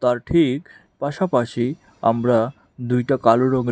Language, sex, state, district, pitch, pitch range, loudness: Bengali, male, Tripura, West Tripura, 125 Hz, 120-135 Hz, -20 LUFS